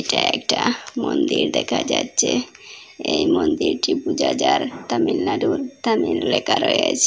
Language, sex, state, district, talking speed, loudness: Bengali, female, Assam, Hailakandi, 110 wpm, -20 LUFS